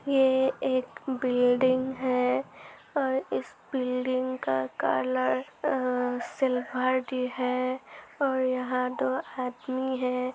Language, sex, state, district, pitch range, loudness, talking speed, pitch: Hindi, female, Uttar Pradesh, Muzaffarnagar, 250-260 Hz, -28 LUFS, 100 wpm, 255 Hz